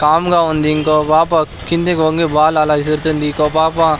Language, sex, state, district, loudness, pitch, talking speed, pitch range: Telugu, male, Andhra Pradesh, Sri Satya Sai, -14 LUFS, 155 Hz, 180 wpm, 150-160 Hz